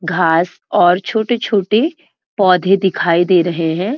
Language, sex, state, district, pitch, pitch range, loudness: Hindi, female, Uttarakhand, Uttarkashi, 185 Hz, 175-220 Hz, -14 LUFS